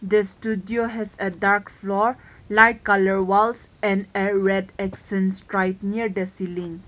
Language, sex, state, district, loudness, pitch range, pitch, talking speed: English, female, Nagaland, Kohima, -22 LUFS, 190-210 Hz, 200 Hz, 155 wpm